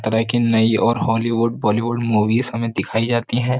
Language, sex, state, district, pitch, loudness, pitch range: Hindi, male, Uttar Pradesh, Jyotiba Phule Nagar, 115 Hz, -18 LUFS, 110-120 Hz